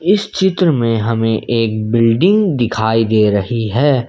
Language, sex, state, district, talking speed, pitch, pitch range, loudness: Hindi, male, Jharkhand, Ranchi, 145 wpm, 115 Hz, 110-165 Hz, -14 LUFS